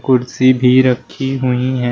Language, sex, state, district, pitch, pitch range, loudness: Hindi, male, Uttar Pradesh, Shamli, 130 Hz, 125-130 Hz, -14 LUFS